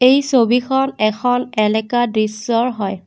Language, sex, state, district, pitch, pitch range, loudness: Assamese, female, Assam, Kamrup Metropolitan, 240 Hz, 215-250 Hz, -17 LUFS